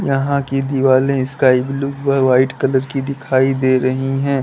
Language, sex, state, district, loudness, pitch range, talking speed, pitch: Hindi, male, Uttar Pradesh, Lalitpur, -16 LUFS, 130-140 Hz, 175 wpm, 135 Hz